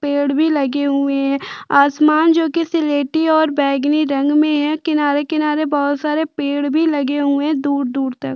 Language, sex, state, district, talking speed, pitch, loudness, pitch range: Hindi, female, Chhattisgarh, Jashpur, 210 wpm, 290 Hz, -16 LUFS, 280-310 Hz